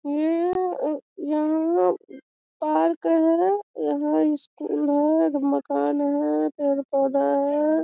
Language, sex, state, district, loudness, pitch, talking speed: Hindi, female, Bihar, Sitamarhi, -23 LUFS, 285 Hz, 90 wpm